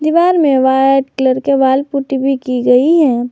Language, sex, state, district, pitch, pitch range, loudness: Hindi, female, Jharkhand, Garhwa, 270 Hz, 260-285 Hz, -12 LUFS